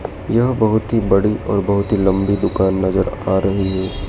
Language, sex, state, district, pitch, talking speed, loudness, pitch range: Hindi, male, Madhya Pradesh, Dhar, 95 Hz, 190 wpm, -17 LUFS, 95-105 Hz